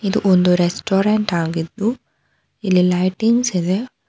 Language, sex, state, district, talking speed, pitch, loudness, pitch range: Kannada, female, Karnataka, Bangalore, 105 wpm, 190 Hz, -18 LUFS, 180-215 Hz